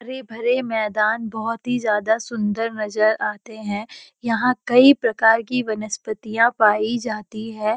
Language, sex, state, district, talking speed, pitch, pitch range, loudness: Hindi, female, Uttarakhand, Uttarkashi, 130 wpm, 225 Hz, 215-235 Hz, -20 LUFS